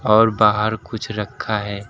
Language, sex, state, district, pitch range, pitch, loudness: Hindi, male, Uttar Pradesh, Lucknow, 105-110 Hz, 105 Hz, -19 LUFS